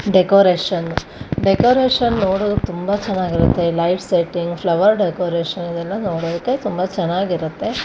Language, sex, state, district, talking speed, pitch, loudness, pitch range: Kannada, female, Karnataka, Shimoga, 100 wpm, 185 Hz, -18 LUFS, 170-200 Hz